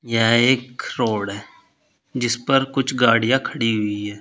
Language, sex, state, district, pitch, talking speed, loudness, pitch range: Hindi, male, Uttar Pradesh, Saharanpur, 120 Hz, 155 wpm, -20 LUFS, 115-130 Hz